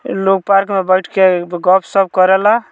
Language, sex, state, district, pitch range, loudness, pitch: Bhojpuri, male, Bihar, Muzaffarpur, 185-195 Hz, -13 LUFS, 190 Hz